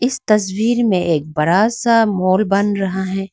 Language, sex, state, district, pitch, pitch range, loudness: Hindi, female, Arunachal Pradesh, Lower Dibang Valley, 200 Hz, 190-225 Hz, -16 LUFS